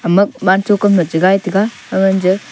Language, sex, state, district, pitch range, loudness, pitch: Wancho, male, Arunachal Pradesh, Longding, 185-205 Hz, -14 LUFS, 195 Hz